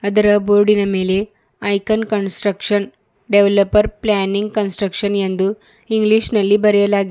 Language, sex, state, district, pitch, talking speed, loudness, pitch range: Kannada, male, Karnataka, Bidar, 205 Hz, 110 wpm, -16 LUFS, 200-210 Hz